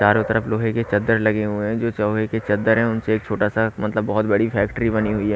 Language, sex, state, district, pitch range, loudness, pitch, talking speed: Hindi, male, Haryana, Rohtak, 105-110 Hz, -20 LUFS, 110 Hz, 270 wpm